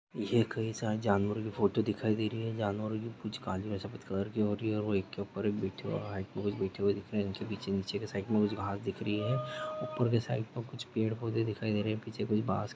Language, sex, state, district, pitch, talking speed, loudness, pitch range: Hindi, male, Chhattisgarh, Rajnandgaon, 105 Hz, 245 wpm, -34 LUFS, 100-115 Hz